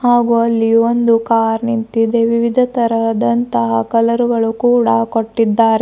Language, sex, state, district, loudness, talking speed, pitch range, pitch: Kannada, female, Karnataka, Bidar, -14 LUFS, 115 wpm, 225-235 Hz, 230 Hz